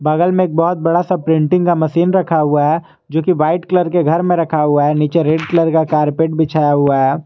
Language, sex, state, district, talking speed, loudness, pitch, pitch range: Hindi, male, Jharkhand, Garhwa, 275 wpm, -14 LUFS, 160 Hz, 150-175 Hz